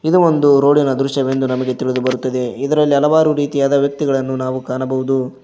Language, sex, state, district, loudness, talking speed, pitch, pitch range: Kannada, male, Karnataka, Koppal, -16 LUFS, 130 wpm, 135 Hz, 130-145 Hz